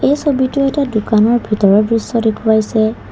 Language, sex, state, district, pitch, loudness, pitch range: Assamese, female, Assam, Kamrup Metropolitan, 225 Hz, -14 LUFS, 215-260 Hz